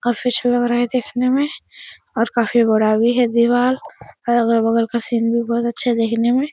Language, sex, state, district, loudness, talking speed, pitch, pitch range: Hindi, female, Uttar Pradesh, Etah, -17 LUFS, 195 wpm, 235 Hz, 230-245 Hz